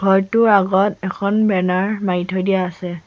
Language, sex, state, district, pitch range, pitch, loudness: Assamese, female, Assam, Sonitpur, 185-200 Hz, 190 Hz, -17 LUFS